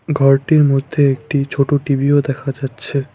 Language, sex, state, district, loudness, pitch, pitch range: Bengali, male, West Bengal, Cooch Behar, -16 LUFS, 140 Hz, 135-145 Hz